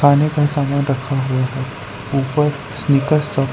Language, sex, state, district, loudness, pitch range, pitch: Hindi, male, Gujarat, Valsad, -18 LUFS, 135-145 Hz, 140 Hz